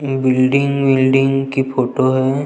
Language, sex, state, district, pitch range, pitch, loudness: Hindi, male, Chhattisgarh, Jashpur, 130-135 Hz, 135 Hz, -15 LUFS